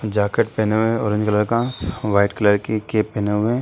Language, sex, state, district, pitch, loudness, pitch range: Hindi, male, Uttar Pradesh, Jalaun, 105 Hz, -20 LUFS, 105-110 Hz